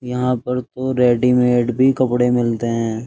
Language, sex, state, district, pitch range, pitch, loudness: Hindi, male, Uttar Pradesh, Jyotiba Phule Nagar, 120-125 Hz, 125 Hz, -17 LUFS